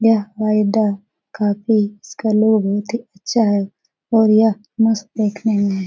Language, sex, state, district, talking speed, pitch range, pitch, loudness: Hindi, female, Bihar, Jahanabad, 155 wpm, 205-225 Hz, 215 Hz, -18 LUFS